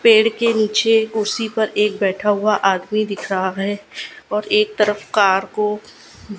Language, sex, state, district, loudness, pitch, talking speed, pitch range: Hindi, female, Gujarat, Gandhinagar, -18 LUFS, 210 Hz, 160 wpm, 200-215 Hz